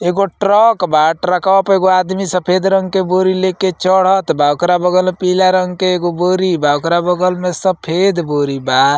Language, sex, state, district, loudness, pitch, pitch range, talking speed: Bhojpuri, male, Uttar Pradesh, Ghazipur, -13 LUFS, 185 Hz, 175-190 Hz, 195 wpm